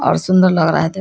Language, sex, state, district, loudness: Hindi, female, Bihar, Vaishali, -14 LUFS